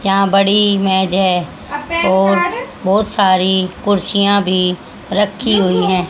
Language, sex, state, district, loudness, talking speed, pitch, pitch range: Hindi, female, Haryana, Jhajjar, -14 LUFS, 110 wpm, 195 Hz, 185-205 Hz